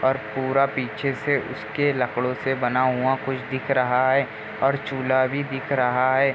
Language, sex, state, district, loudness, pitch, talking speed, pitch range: Hindi, male, Bihar, Jamui, -23 LUFS, 130 Hz, 190 wpm, 125-135 Hz